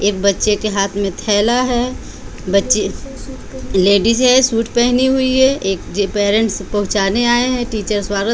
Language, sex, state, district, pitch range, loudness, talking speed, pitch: Hindi, female, Bihar, Patna, 200-240 Hz, -15 LUFS, 160 wpm, 215 Hz